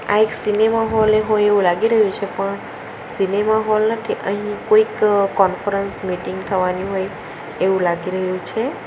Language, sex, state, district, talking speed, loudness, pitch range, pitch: Gujarati, female, Gujarat, Valsad, 160 wpm, -18 LUFS, 190-215 Hz, 200 Hz